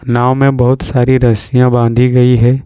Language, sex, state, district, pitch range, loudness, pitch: Hindi, male, Jharkhand, Ranchi, 120-130 Hz, -10 LUFS, 125 Hz